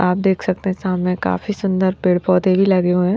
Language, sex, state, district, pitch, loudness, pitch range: Hindi, female, Haryana, Rohtak, 185 Hz, -18 LUFS, 180-190 Hz